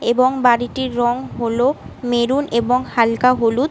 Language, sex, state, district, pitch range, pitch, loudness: Bengali, female, West Bengal, Kolkata, 235-255 Hz, 245 Hz, -17 LUFS